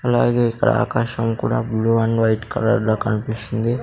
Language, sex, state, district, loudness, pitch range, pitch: Telugu, male, Andhra Pradesh, Sri Satya Sai, -19 LUFS, 110-120 Hz, 115 Hz